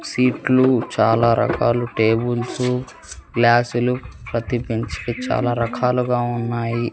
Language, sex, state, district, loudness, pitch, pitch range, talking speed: Telugu, male, Andhra Pradesh, Sri Satya Sai, -20 LUFS, 120 Hz, 115-125 Hz, 85 wpm